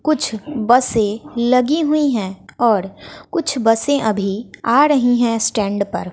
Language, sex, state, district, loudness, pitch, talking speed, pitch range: Hindi, female, Bihar, West Champaran, -17 LUFS, 235 Hz, 135 wpm, 210-280 Hz